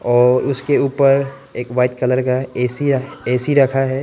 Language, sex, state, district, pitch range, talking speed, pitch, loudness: Hindi, male, Arunachal Pradesh, Papum Pare, 125-135 Hz, 210 wpm, 130 Hz, -17 LUFS